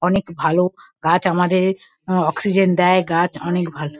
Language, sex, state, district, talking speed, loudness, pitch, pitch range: Bengali, female, West Bengal, Kolkata, 195 wpm, -18 LUFS, 180 Hz, 170-185 Hz